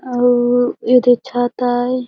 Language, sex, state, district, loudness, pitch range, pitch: Surgujia, female, Chhattisgarh, Sarguja, -15 LUFS, 245-250 Hz, 245 Hz